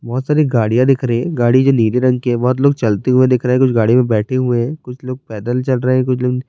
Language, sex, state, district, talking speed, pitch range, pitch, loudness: Urdu, male, Bihar, Saharsa, 295 wpm, 120-130 Hz, 125 Hz, -15 LUFS